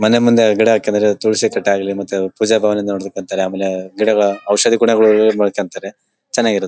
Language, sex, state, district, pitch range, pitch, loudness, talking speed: Kannada, male, Karnataka, Bellary, 100-110 Hz, 105 Hz, -15 LUFS, 155 wpm